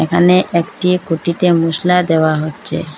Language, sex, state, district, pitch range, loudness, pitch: Bengali, female, Assam, Hailakandi, 165-180 Hz, -14 LUFS, 170 Hz